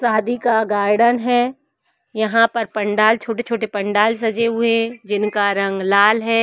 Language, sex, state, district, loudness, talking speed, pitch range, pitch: Hindi, female, Uttar Pradesh, Varanasi, -17 LUFS, 150 wpm, 210-235 Hz, 225 Hz